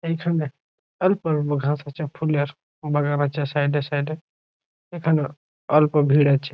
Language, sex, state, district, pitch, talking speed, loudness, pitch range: Bengali, male, West Bengal, Jhargram, 150 Hz, 135 wpm, -22 LUFS, 145-155 Hz